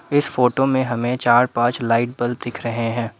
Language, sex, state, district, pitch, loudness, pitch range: Hindi, male, Assam, Kamrup Metropolitan, 120 Hz, -19 LUFS, 115-125 Hz